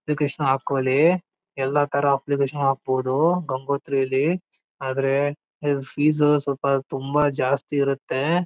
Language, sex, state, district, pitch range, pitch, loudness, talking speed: Kannada, male, Karnataka, Chamarajanagar, 135-150 Hz, 140 Hz, -23 LUFS, 90 wpm